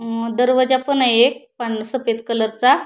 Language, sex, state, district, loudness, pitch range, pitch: Marathi, female, Maharashtra, Pune, -18 LUFS, 230-255 Hz, 245 Hz